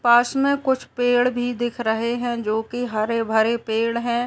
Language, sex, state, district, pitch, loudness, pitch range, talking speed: Hindi, female, Uttar Pradesh, Gorakhpur, 240 Hz, -21 LUFS, 225-245 Hz, 170 wpm